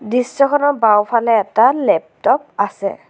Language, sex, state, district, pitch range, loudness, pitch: Assamese, female, Assam, Sonitpur, 225-280 Hz, -15 LUFS, 240 Hz